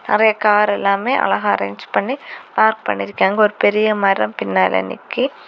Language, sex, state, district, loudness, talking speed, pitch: Tamil, female, Tamil Nadu, Kanyakumari, -17 LUFS, 140 wpm, 150 Hz